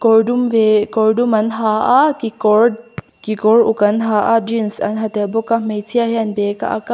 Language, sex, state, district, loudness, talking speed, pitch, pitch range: Mizo, female, Mizoram, Aizawl, -15 LUFS, 225 wpm, 220 Hz, 215-230 Hz